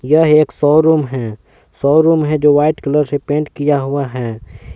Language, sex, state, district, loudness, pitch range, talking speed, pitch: Hindi, male, Jharkhand, Palamu, -14 LUFS, 140-155 Hz, 175 wpm, 145 Hz